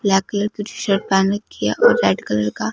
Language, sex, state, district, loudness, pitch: Hindi, female, Punjab, Fazilka, -19 LUFS, 195 Hz